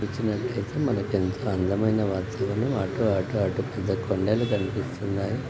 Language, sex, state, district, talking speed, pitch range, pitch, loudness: Telugu, male, Telangana, Nalgonda, 110 wpm, 95-115 Hz, 105 Hz, -26 LUFS